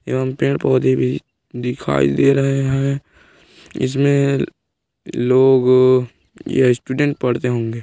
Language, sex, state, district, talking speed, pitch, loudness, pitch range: Hindi, male, Chhattisgarh, Korba, 105 wpm, 130 Hz, -17 LUFS, 125-135 Hz